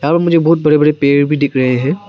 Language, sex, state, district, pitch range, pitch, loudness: Hindi, male, Arunachal Pradesh, Papum Pare, 140-165 Hz, 150 Hz, -12 LUFS